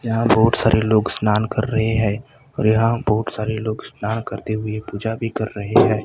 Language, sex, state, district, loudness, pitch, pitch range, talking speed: Hindi, male, Maharashtra, Gondia, -20 LUFS, 110 Hz, 110-115 Hz, 220 wpm